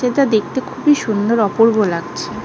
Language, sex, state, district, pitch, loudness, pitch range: Bengali, female, West Bengal, North 24 Parganas, 225 Hz, -16 LUFS, 210-260 Hz